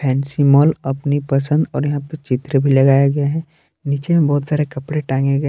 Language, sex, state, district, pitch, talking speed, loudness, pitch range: Hindi, male, Jharkhand, Palamu, 140 Hz, 220 wpm, -17 LUFS, 135-150 Hz